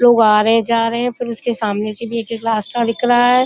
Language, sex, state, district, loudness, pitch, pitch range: Hindi, female, Uttar Pradesh, Budaun, -16 LUFS, 230 Hz, 225-240 Hz